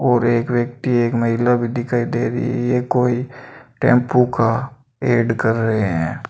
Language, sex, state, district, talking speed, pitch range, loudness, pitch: Hindi, male, Rajasthan, Bikaner, 160 wpm, 115-125 Hz, -18 LUFS, 120 Hz